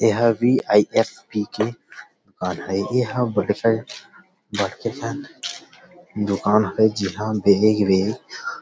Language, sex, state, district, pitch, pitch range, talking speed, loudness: Chhattisgarhi, male, Chhattisgarh, Rajnandgaon, 110 Hz, 105-115 Hz, 110 wpm, -21 LUFS